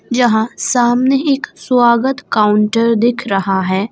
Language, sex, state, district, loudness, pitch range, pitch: Hindi, female, Jharkhand, Garhwa, -14 LUFS, 210-250 Hz, 235 Hz